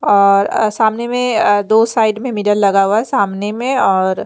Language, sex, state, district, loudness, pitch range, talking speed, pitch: Hindi, female, Bihar, Patna, -14 LUFS, 200-230 Hz, 210 wpm, 210 Hz